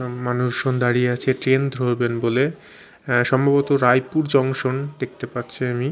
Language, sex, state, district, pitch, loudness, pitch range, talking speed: Bengali, male, Chhattisgarh, Raipur, 130 Hz, -20 LUFS, 125-140 Hz, 130 wpm